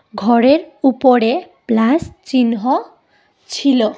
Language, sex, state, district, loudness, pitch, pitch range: Bengali, female, Tripura, Dhalai, -15 LUFS, 250 Hz, 230-280 Hz